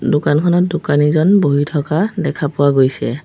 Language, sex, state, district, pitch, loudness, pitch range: Assamese, female, Assam, Sonitpur, 150 Hz, -15 LUFS, 145-175 Hz